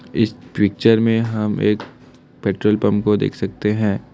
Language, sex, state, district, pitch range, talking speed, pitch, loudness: Hindi, male, Assam, Kamrup Metropolitan, 105-110 Hz, 160 wpm, 105 Hz, -19 LUFS